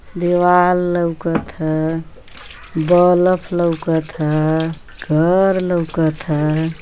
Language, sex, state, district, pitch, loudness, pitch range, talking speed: Bhojpuri, female, Uttar Pradesh, Ghazipur, 165 Hz, -17 LUFS, 160-175 Hz, 80 wpm